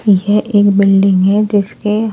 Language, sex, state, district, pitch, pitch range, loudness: Hindi, male, Delhi, New Delhi, 205 Hz, 195-210 Hz, -12 LUFS